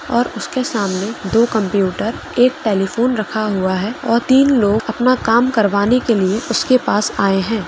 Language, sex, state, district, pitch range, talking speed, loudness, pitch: Hindi, female, Chhattisgarh, Korba, 205-245 Hz, 170 wpm, -16 LUFS, 225 Hz